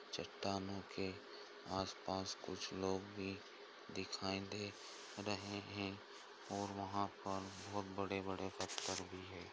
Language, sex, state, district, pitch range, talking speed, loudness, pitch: Hindi, male, Chhattisgarh, Sukma, 95-100 Hz, 115 wpm, -46 LUFS, 95 Hz